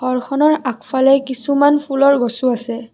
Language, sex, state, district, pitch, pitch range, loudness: Assamese, female, Assam, Kamrup Metropolitan, 260 Hz, 250-280 Hz, -16 LUFS